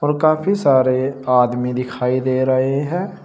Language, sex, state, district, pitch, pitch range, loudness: Hindi, male, Uttar Pradesh, Shamli, 130 Hz, 125-150 Hz, -17 LUFS